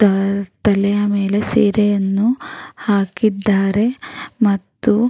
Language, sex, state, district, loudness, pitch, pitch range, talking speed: Kannada, female, Karnataka, Raichur, -17 LUFS, 205 Hz, 195-215 Hz, 80 wpm